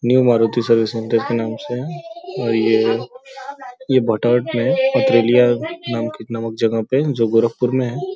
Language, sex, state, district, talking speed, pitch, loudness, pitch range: Hindi, male, Uttar Pradesh, Gorakhpur, 140 wpm, 120 Hz, -18 LUFS, 115-140 Hz